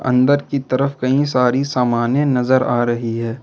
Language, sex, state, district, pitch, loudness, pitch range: Hindi, male, Jharkhand, Ranchi, 130 Hz, -17 LUFS, 120-135 Hz